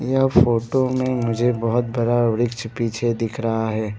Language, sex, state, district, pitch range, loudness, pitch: Hindi, male, Arunachal Pradesh, Lower Dibang Valley, 115-125 Hz, -20 LUFS, 120 Hz